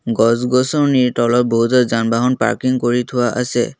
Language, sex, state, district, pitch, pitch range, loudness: Assamese, male, Assam, Kamrup Metropolitan, 120 Hz, 120-125 Hz, -16 LUFS